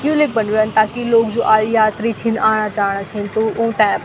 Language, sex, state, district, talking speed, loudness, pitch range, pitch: Garhwali, female, Uttarakhand, Tehri Garhwal, 225 wpm, -16 LUFS, 215-230 Hz, 220 Hz